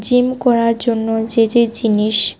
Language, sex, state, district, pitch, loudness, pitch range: Bengali, female, Tripura, West Tripura, 230 Hz, -15 LUFS, 225-240 Hz